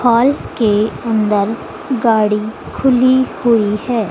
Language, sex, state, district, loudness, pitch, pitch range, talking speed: Hindi, female, Madhya Pradesh, Dhar, -15 LUFS, 230 Hz, 215-255 Hz, 100 wpm